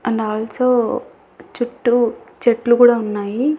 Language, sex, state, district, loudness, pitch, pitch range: Telugu, female, Andhra Pradesh, Annamaya, -17 LUFS, 240 Hz, 220-245 Hz